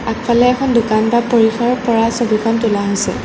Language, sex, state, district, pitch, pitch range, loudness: Assamese, female, Assam, Sonitpur, 230 Hz, 220-235 Hz, -14 LUFS